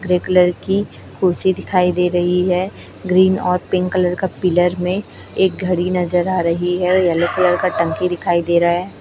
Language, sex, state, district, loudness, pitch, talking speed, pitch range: Hindi, female, Chhattisgarh, Raipur, -17 LUFS, 180 Hz, 195 wpm, 175-185 Hz